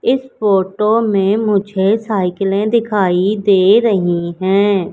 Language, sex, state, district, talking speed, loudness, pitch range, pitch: Hindi, female, Madhya Pradesh, Katni, 110 wpm, -14 LUFS, 190-215 Hz, 200 Hz